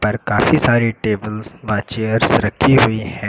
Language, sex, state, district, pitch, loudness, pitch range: Hindi, male, Uttar Pradesh, Lucknow, 110 Hz, -16 LUFS, 105-120 Hz